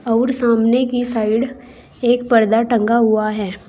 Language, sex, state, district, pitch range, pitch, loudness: Hindi, female, Uttar Pradesh, Saharanpur, 220-245 Hz, 235 Hz, -16 LUFS